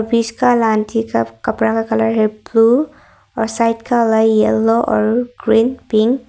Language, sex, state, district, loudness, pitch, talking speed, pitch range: Hindi, female, Arunachal Pradesh, Longding, -15 LUFS, 225 Hz, 135 wpm, 220-235 Hz